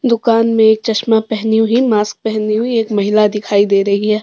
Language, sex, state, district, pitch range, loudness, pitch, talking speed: Hindi, female, Jharkhand, Deoghar, 210-225 Hz, -14 LUFS, 220 Hz, 200 wpm